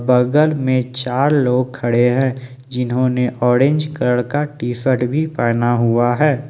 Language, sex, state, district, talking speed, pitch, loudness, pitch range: Hindi, male, Jharkhand, Ranchi, 150 wpm, 125 Hz, -17 LUFS, 125-140 Hz